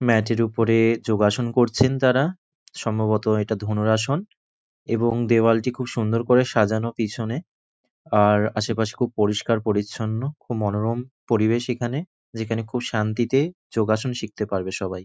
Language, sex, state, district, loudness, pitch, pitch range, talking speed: Bengali, male, West Bengal, North 24 Parganas, -22 LUFS, 115 Hz, 110-125 Hz, 130 wpm